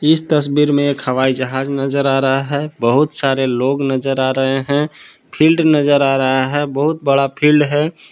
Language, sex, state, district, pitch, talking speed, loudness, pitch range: Hindi, male, Jharkhand, Palamu, 140 Hz, 190 wpm, -15 LUFS, 135-150 Hz